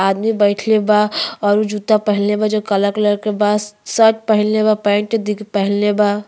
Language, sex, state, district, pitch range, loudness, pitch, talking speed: Bhojpuri, female, Uttar Pradesh, Gorakhpur, 205-215 Hz, -16 LUFS, 210 Hz, 180 wpm